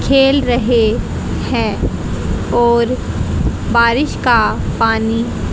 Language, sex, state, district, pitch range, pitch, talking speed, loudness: Hindi, female, Haryana, Jhajjar, 230-250 Hz, 235 Hz, 75 wpm, -15 LUFS